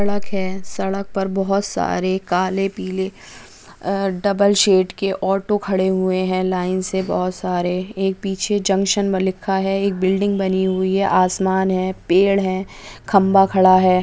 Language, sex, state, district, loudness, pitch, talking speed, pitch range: Hindi, female, Bihar, Gaya, -19 LUFS, 190 Hz, 165 wpm, 185-195 Hz